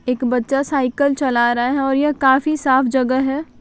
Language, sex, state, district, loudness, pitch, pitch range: Hindi, female, Bihar, Saran, -17 LUFS, 265 Hz, 250-280 Hz